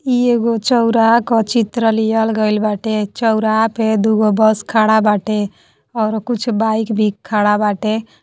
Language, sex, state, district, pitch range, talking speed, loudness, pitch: Bhojpuri, female, Uttar Pradesh, Deoria, 215-225 Hz, 145 wpm, -15 LUFS, 220 Hz